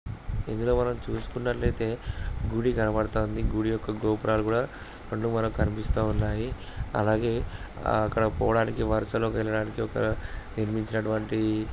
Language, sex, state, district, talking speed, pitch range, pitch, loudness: Telugu, male, Andhra Pradesh, Guntur, 105 wpm, 105-115 Hz, 110 Hz, -28 LUFS